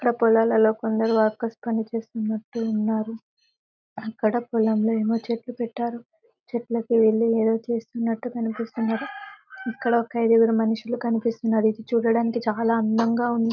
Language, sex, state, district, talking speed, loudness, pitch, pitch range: Telugu, female, Telangana, Karimnagar, 115 wpm, -23 LUFS, 230 Hz, 225-235 Hz